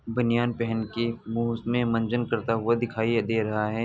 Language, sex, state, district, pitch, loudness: Hindi, male, Uttar Pradesh, Jalaun, 115 Hz, -26 LUFS